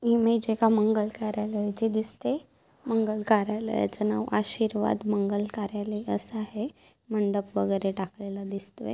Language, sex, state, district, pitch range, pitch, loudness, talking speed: Marathi, female, Maharashtra, Dhule, 200-220 Hz, 210 Hz, -28 LUFS, 115 wpm